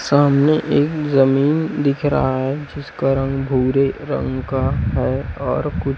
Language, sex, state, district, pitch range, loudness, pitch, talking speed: Hindi, male, Chhattisgarh, Raipur, 135-145 Hz, -18 LUFS, 135 Hz, 140 wpm